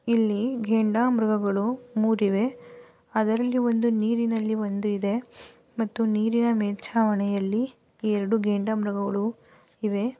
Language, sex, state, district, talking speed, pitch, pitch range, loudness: Kannada, female, Karnataka, Gulbarga, 90 wpm, 220 Hz, 210-235 Hz, -25 LUFS